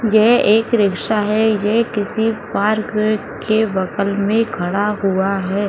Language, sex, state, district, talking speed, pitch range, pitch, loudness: Hindi, female, Bihar, Saran, 135 wpm, 200-220 Hz, 215 Hz, -17 LUFS